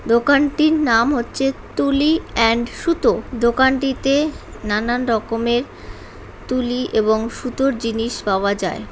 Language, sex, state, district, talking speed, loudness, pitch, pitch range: Bengali, male, West Bengal, Jhargram, 100 wpm, -18 LUFS, 245 Hz, 230-275 Hz